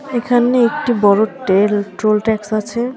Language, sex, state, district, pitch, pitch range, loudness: Bengali, female, West Bengal, Alipurduar, 220 Hz, 210-245 Hz, -15 LUFS